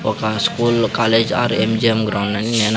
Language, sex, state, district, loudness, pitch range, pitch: Telugu, male, Andhra Pradesh, Sri Satya Sai, -17 LUFS, 110-115 Hz, 110 Hz